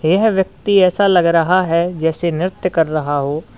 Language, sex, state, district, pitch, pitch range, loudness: Hindi, male, Uttar Pradesh, Lalitpur, 175 Hz, 160-185 Hz, -15 LUFS